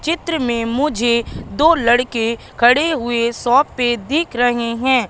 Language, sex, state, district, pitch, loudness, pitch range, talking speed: Hindi, female, Madhya Pradesh, Katni, 245 Hz, -16 LUFS, 235-300 Hz, 140 wpm